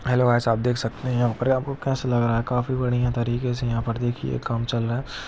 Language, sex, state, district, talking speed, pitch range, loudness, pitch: Hindi, male, Chhattisgarh, Rajnandgaon, 285 wpm, 120-125 Hz, -24 LUFS, 120 Hz